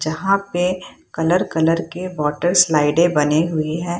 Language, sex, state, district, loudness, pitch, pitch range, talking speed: Hindi, female, Bihar, Purnia, -18 LUFS, 165 Hz, 155-180 Hz, 150 wpm